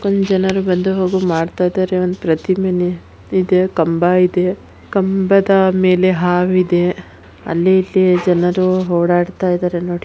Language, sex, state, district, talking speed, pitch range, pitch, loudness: Kannada, female, Karnataka, Shimoga, 115 wpm, 180-190 Hz, 185 Hz, -15 LUFS